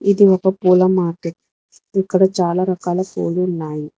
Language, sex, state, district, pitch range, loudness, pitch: Telugu, female, Telangana, Hyderabad, 175-190 Hz, -17 LUFS, 185 Hz